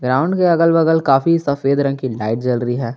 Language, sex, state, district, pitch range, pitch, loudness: Hindi, male, Jharkhand, Garhwa, 125-165 Hz, 140 Hz, -16 LUFS